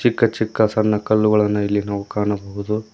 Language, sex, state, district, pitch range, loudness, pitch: Kannada, male, Karnataka, Koppal, 105-110 Hz, -19 LUFS, 105 Hz